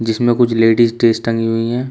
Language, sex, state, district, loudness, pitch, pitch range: Hindi, male, Uttar Pradesh, Shamli, -14 LUFS, 115 Hz, 115-120 Hz